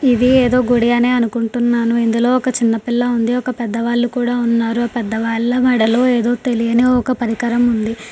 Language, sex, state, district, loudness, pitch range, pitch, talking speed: Telugu, female, Andhra Pradesh, Srikakulam, -16 LUFS, 230-245 Hz, 240 Hz, 170 wpm